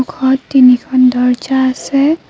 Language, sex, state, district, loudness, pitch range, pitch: Assamese, female, Assam, Kamrup Metropolitan, -12 LUFS, 255-270 Hz, 260 Hz